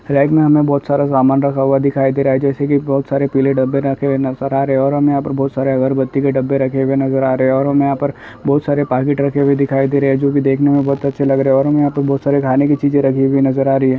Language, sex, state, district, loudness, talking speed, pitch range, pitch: Hindi, male, Bihar, Gaya, -15 LUFS, 310 wpm, 135-140 Hz, 140 Hz